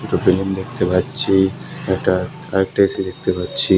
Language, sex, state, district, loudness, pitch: Bengali, male, West Bengal, Cooch Behar, -18 LUFS, 95 Hz